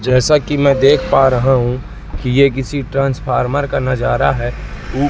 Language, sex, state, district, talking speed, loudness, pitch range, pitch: Hindi, male, Madhya Pradesh, Katni, 175 wpm, -15 LUFS, 125-140 Hz, 135 Hz